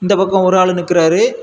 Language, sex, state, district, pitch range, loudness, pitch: Tamil, male, Tamil Nadu, Kanyakumari, 180-200 Hz, -13 LUFS, 185 Hz